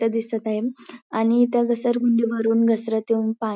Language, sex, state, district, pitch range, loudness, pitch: Marathi, female, Maharashtra, Pune, 220-235 Hz, -22 LUFS, 225 Hz